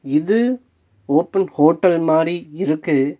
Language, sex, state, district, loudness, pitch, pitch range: Tamil, male, Tamil Nadu, Nilgiris, -18 LUFS, 160 Hz, 145-185 Hz